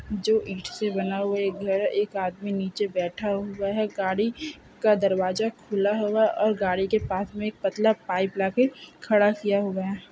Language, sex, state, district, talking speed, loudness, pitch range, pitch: Hindi, female, Chhattisgarh, Bilaspur, 195 wpm, -25 LUFS, 195-215 Hz, 205 Hz